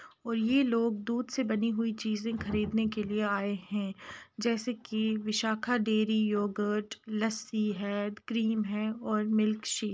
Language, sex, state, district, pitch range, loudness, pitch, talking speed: Hindi, female, Uttar Pradesh, Jalaun, 210-225 Hz, -31 LUFS, 220 Hz, 125 wpm